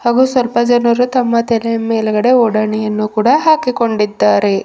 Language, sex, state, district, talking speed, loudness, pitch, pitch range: Kannada, female, Karnataka, Bidar, 130 wpm, -13 LUFS, 230 Hz, 215-245 Hz